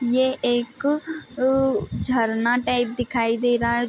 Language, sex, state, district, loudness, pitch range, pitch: Hindi, female, Bihar, East Champaran, -22 LUFS, 240-260 Hz, 245 Hz